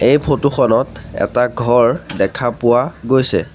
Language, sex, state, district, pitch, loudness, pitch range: Assamese, male, Assam, Sonitpur, 125 Hz, -15 LUFS, 120-135 Hz